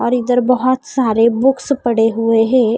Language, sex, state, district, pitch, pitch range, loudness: Hindi, female, Odisha, Khordha, 245 Hz, 225-255 Hz, -14 LUFS